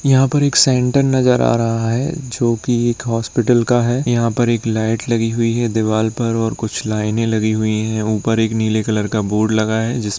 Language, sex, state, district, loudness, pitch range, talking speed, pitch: Hindi, male, Bihar, Saharsa, -17 LUFS, 110-120 Hz, 225 wpm, 115 Hz